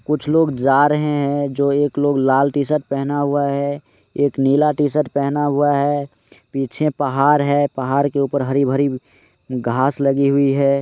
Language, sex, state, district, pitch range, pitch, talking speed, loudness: Hindi, male, Rajasthan, Nagaur, 135-145 Hz, 140 Hz, 185 wpm, -18 LUFS